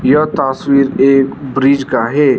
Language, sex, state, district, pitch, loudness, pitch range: Hindi, male, Arunachal Pradesh, Lower Dibang Valley, 135 Hz, -12 LUFS, 135-140 Hz